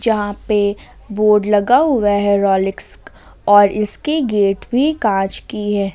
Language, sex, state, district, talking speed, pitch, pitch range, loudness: Hindi, female, Jharkhand, Ranchi, 140 wpm, 205 Hz, 200-220 Hz, -16 LUFS